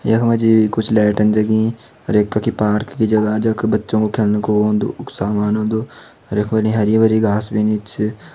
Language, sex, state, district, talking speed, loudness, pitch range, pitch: Hindi, male, Uttarakhand, Uttarkashi, 210 wpm, -17 LUFS, 105-110 Hz, 110 Hz